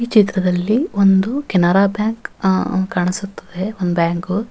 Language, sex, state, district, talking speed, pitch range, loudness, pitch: Kannada, female, Karnataka, Bellary, 135 wpm, 180-210 Hz, -17 LUFS, 190 Hz